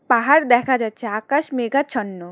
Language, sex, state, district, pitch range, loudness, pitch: Bengali, female, West Bengal, Cooch Behar, 225-275 Hz, -19 LUFS, 240 Hz